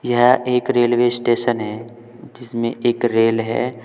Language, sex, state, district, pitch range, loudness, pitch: Hindi, male, Uttar Pradesh, Saharanpur, 115-120 Hz, -18 LUFS, 120 Hz